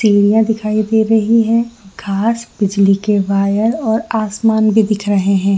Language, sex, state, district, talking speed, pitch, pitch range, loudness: Hindi, female, Jharkhand, Jamtara, 160 wpm, 215 Hz, 200-225 Hz, -14 LUFS